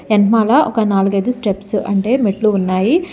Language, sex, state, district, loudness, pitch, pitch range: Telugu, female, Telangana, Hyderabad, -15 LUFS, 210 Hz, 200-225 Hz